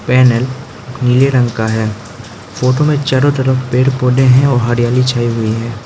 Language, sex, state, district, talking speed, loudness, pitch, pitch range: Hindi, male, Arunachal Pradesh, Lower Dibang Valley, 175 wpm, -13 LUFS, 125 Hz, 120-130 Hz